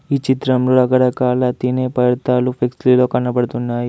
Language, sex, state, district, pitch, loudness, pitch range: Telugu, male, Telangana, Adilabad, 125 Hz, -16 LUFS, 125-130 Hz